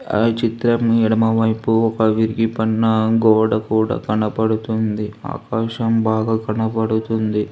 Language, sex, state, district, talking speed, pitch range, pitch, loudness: Telugu, female, Telangana, Hyderabad, 90 wpm, 110-115 Hz, 110 Hz, -18 LUFS